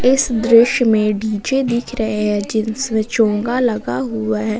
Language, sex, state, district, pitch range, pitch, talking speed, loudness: Hindi, female, Jharkhand, Palamu, 215-245 Hz, 225 Hz, 155 wpm, -17 LUFS